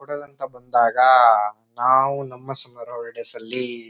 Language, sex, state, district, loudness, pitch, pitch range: Kannada, male, Karnataka, Shimoga, -19 LUFS, 125 Hz, 115-135 Hz